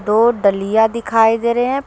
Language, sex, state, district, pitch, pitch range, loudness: Hindi, female, Jharkhand, Deoghar, 225 Hz, 215-235 Hz, -15 LUFS